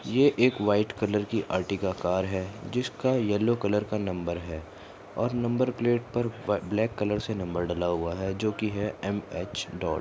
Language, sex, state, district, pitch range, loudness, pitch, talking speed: Hindi, male, Maharashtra, Solapur, 95-115 Hz, -28 LUFS, 105 Hz, 185 wpm